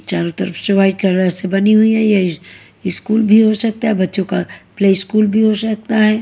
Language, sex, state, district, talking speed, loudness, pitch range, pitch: Hindi, female, Haryana, Jhajjar, 220 wpm, -15 LUFS, 190-220 Hz, 210 Hz